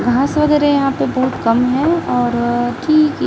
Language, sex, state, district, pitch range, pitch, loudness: Hindi, female, Chhattisgarh, Raipur, 245-300 Hz, 270 Hz, -15 LUFS